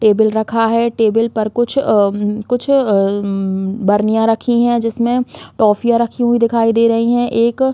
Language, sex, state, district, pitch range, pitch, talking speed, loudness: Hindi, female, Chhattisgarh, Balrampur, 215-240 Hz, 230 Hz, 165 wpm, -15 LUFS